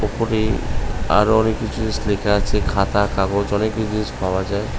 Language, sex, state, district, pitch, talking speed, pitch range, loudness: Bengali, male, West Bengal, North 24 Parganas, 105 Hz, 175 wpm, 100-110 Hz, -20 LUFS